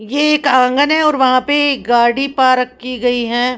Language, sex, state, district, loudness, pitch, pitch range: Hindi, female, Haryana, Jhajjar, -13 LUFS, 255 Hz, 245-285 Hz